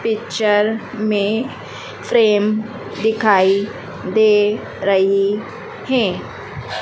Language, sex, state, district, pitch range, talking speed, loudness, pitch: Hindi, female, Madhya Pradesh, Dhar, 200-220 Hz, 60 wpm, -17 LUFS, 215 Hz